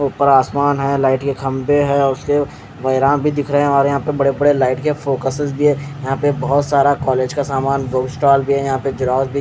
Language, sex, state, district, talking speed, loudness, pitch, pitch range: Hindi, male, Odisha, Khordha, 215 wpm, -16 LUFS, 140 Hz, 135-145 Hz